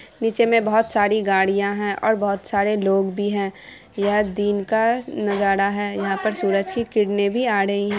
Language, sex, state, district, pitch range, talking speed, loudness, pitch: Hindi, female, Bihar, Araria, 200-215 Hz, 205 wpm, -21 LUFS, 205 Hz